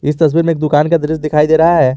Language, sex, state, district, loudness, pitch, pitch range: Hindi, male, Jharkhand, Garhwa, -12 LUFS, 155 Hz, 150-165 Hz